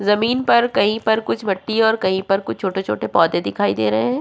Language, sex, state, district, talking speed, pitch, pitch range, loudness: Hindi, female, Uttarakhand, Tehri Garhwal, 230 wpm, 205 Hz, 190-225 Hz, -18 LUFS